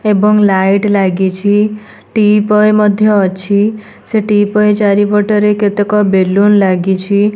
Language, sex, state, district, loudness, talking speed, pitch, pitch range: Odia, female, Odisha, Nuapada, -11 LUFS, 100 wpm, 205 Hz, 200-210 Hz